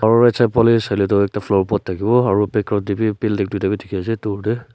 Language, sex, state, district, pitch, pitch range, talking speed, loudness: Nagamese, male, Nagaland, Kohima, 105 Hz, 100-115 Hz, 265 wpm, -18 LUFS